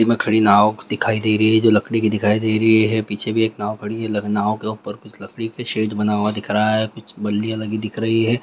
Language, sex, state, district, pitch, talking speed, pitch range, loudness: Hindi, male, West Bengal, Jhargram, 110 Hz, 255 wpm, 105-110 Hz, -19 LUFS